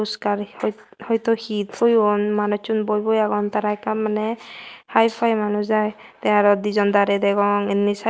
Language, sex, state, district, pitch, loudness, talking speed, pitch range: Chakma, female, Tripura, West Tripura, 210 Hz, -20 LUFS, 165 wpm, 205-220 Hz